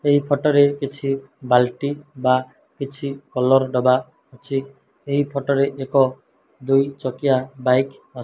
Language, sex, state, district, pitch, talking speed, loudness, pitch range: Odia, male, Odisha, Malkangiri, 135 Hz, 140 wpm, -20 LUFS, 130-140 Hz